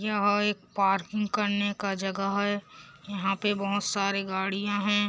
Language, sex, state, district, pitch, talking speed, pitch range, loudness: Hindi, male, Chhattisgarh, Korba, 205 Hz, 155 wpm, 195-205 Hz, -28 LUFS